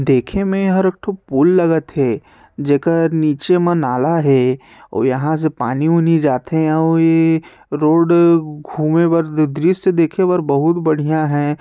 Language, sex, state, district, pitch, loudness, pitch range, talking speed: Chhattisgarhi, male, Chhattisgarh, Sarguja, 160 Hz, -15 LUFS, 145-170 Hz, 155 wpm